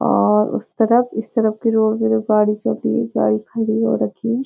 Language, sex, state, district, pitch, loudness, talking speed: Hindi, female, Uttarakhand, Uttarkashi, 220 Hz, -18 LUFS, 230 wpm